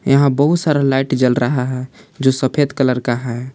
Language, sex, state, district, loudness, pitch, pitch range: Hindi, male, Jharkhand, Palamu, -16 LUFS, 135 Hz, 125-140 Hz